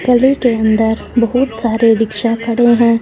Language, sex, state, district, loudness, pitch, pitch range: Hindi, female, Punjab, Fazilka, -13 LUFS, 230 Hz, 225-240 Hz